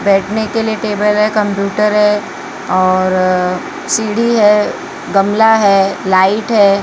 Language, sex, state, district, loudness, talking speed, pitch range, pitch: Hindi, female, Maharashtra, Mumbai Suburban, -13 LUFS, 125 wpm, 195-215 Hz, 205 Hz